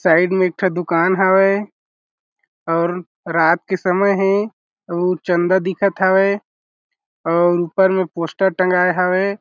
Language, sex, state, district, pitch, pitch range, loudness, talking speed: Chhattisgarhi, male, Chhattisgarh, Jashpur, 185 Hz, 175-195 Hz, -17 LUFS, 135 wpm